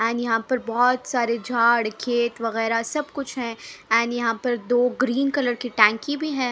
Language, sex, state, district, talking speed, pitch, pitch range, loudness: Hindi, female, Haryana, Charkhi Dadri, 200 wpm, 240 Hz, 230-255 Hz, -22 LUFS